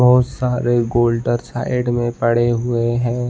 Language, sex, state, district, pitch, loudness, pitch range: Hindi, male, Uttarakhand, Uttarkashi, 120 Hz, -18 LUFS, 120-125 Hz